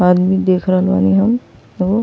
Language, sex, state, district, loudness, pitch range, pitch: Bhojpuri, female, Uttar Pradesh, Ghazipur, -15 LUFS, 180-190 Hz, 185 Hz